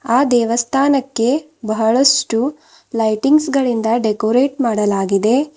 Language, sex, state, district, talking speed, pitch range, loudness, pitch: Kannada, female, Karnataka, Bidar, 75 wpm, 225-280 Hz, -16 LUFS, 245 Hz